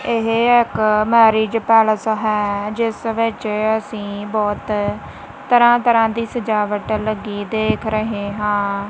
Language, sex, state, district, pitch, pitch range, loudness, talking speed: Punjabi, female, Punjab, Kapurthala, 215 Hz, 210-225 Hz, -17 LUFS, 115 wpm